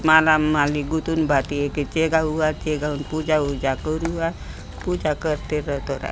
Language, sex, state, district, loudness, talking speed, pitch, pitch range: Halbi, female, Chhattisgarh, Bastar, -22 LUFS, 145 wpm, 155 Hz, 145-160 Hz